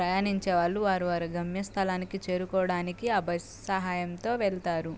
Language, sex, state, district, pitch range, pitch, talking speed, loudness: Telugu, female, Andhra Pradesh, Guntur, 175-195 Hz, 185 Hz, 135 wpm, -30 LUFS